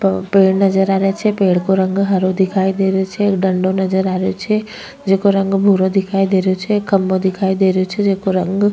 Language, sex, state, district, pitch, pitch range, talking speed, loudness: Rajasthani, female, Rajasthan, Nagaur, 190 Hz, 190-195 Hz, 225 wpm, -15 LUFS